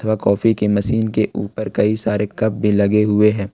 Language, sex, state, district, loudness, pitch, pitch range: Hindi, male, Jharkhand, Ranchi, -17 LUFS, 105 Hz, 105-110 Hz